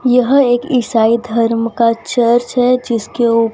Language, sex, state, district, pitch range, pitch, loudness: Hindi, female, Gujarat, Valsad, 230-245 Hz, 235 Hz, -13 LUFS